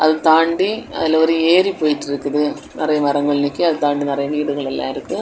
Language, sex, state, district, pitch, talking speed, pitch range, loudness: Tamil, female, Tamil Nadu, Kanyakumari, 150 Hz, 170 wpm, 145-160 Hz, -17 LUFS